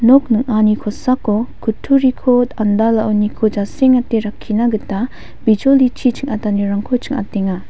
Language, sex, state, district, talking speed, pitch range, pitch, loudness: Garo, female, Meghalaya, West Garo Hills, 85 wpm, 210-250 Hz, 225 Hz, -16 LUFS